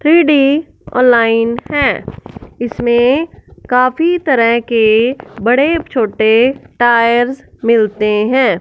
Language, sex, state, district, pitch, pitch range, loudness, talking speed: Hindi, female, Punjab, Fazilka, 240 Hz, 230-275 Hz, -12 LUFS, 90 wpm